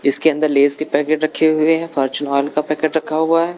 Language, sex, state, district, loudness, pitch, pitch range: Hindi, male, Uttar Pradesh, Lucknow, -17 LUFS, 155 Hz, 145-160 Hz